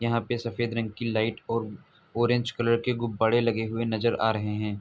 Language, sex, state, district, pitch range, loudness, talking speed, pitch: Hindi, male, Uttar Pradesh, Etah, 110-120 Hz, -27 LUFS, 200 wpm, 115 Hz